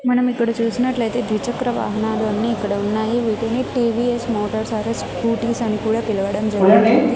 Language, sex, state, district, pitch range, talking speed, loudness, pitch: Telugu, female, Andhra Pradesh, Annamaya, 215-240 Hz, 125 wpm, -19 LUFS, 230 Hz